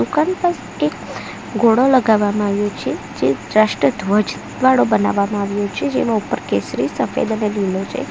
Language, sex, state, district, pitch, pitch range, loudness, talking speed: Gujarati, female, Gujarat, Valsad, 210 Hz, 200-230 Hz, -18 LUFS, 155 wpm